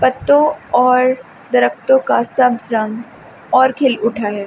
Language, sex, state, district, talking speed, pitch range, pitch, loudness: Hindi, female, Delhi, New Delhi, 135 wpm, 220-260 Hz, 240 Hz, -15 LUFS